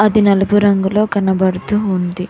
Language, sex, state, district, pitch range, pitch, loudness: Telugu, female, Telangana, Hyderabad, 190-210 Hz, 200 Hz, -14 LUFS